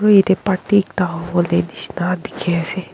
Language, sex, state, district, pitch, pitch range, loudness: Nagamese, female, Nagaland, Kohima, 180 Hz, 175-195 Hz, -18 LUFS